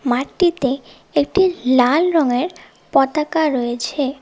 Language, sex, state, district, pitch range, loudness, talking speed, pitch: Bengali, female, West Bengal, Cooch Behar, 255-320 Hz, -18 LUFS, 85 wpm, 280 Hz